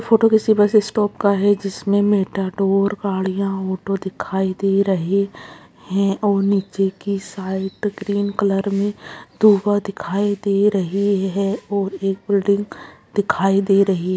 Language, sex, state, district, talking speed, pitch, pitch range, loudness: Hindi, female, Bihar, Lakhisarai, 140 wpm, 200 Hz, 195-205 Hz, -19 LUFS